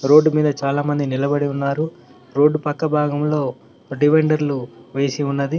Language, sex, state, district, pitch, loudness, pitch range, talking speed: Telugu, male, Telangana, Mahabubabad, 145 Hz, -19 LUFS, 140-150 Hz, 120 wpm